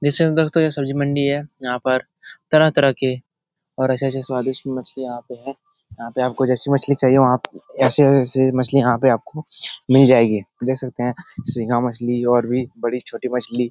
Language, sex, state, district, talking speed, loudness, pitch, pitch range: Hindi, male, Bihar, Jahanabad, 195 wpm, -18 LUFS, 130 Hz, 125-140 Hz